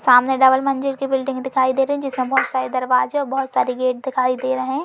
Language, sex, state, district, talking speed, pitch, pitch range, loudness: Hindi, female, Uttar Pradesh, Jalaun, 235 wpm, 265 Hz, 255-270 Hz, -19 LUFS